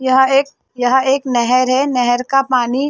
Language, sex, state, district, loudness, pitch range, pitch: Hindi, female, Chhattisgarh, Bastar, -14 LUFS, 250-270 Hz, 260 Hz